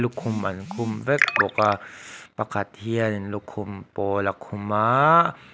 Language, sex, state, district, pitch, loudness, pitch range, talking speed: Mizo, male, Mizoram, Aizawl, 105 Hz, -23 LUFS, 100-115 Hz, 150 wpm